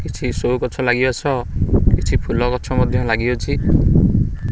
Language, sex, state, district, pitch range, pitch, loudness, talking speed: Odia, male, Odisha, Khordha, 110-125 Hz, 125 Hz, -18 LUFS, 135 wpm